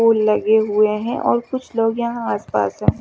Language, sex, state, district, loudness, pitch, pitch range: Hindi, female, Chandigarh, Chandigarh, -19 LUFS, 225 Hz, 215-235 Hz